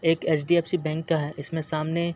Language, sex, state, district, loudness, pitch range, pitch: Hindi, male, Uttar Pradesh, Muzaffarnagar, -26 LUFS, 155-170 Hz, 165 Hz